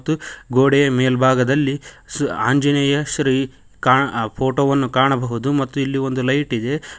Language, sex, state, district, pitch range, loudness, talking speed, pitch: Kannada, male, Karnataka, Koppal, 130-140 Hz, -18 LUFS, 110 wpm, 135 Hz